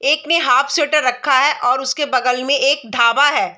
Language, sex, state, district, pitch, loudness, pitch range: Hindi, female, Bihar, Darbhanga, 275 Hz, -15 LUFS, 255-295 Hz